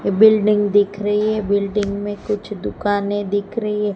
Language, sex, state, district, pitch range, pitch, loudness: Hindi, female, Gujarat, Gandhinagar, 205-210 Hz, 205 Hz, -19 LUFS